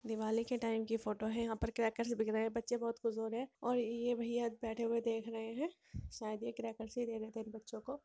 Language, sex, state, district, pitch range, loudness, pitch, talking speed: Hindi, male, Bihar, Purnia, 225-235 Hz, -40 LUFS, 230 Hz, 260 wpm